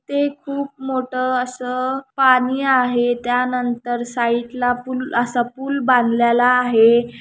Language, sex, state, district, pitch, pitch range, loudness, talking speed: Marathi, female, Maharashtra, Chandrapur, 250 Hz, 240-260 Hz, -18 LUFS, 115 wpm